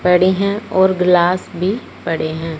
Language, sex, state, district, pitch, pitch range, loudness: Hindi, female, Punjab, Fazilka, 180 Hz, 170-190 Hz, -16 LUFS